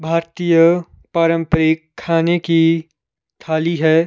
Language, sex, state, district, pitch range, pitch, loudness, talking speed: Hindi, male, Himachal Pradesh, Shimla, 160-165 Hz, 165 Hz, -16 LUFS, 90 wpm